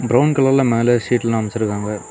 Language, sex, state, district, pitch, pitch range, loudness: Tamil, male, Tamil Nadu, Kanyakumari, 120 Hz, 110-125 Hz, -17 LUFS